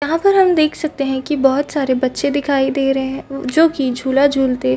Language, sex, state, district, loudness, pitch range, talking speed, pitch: Hindi, female, Chhattisgarh, Balrampur, -16 LUFS, 265-300 Hz, 225 wpm, 275 Hz